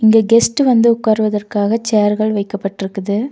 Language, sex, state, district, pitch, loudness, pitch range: Tamil, female, Tamil Nadu, Nilgiris, 215 Hz, -15 LUFS, 205-230 Hz